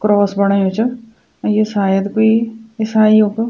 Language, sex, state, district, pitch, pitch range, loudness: Garhwali, female, Uttarakhand, Tehri Garhwal, 215 Hz, 205-225 Hz, -15 LUFS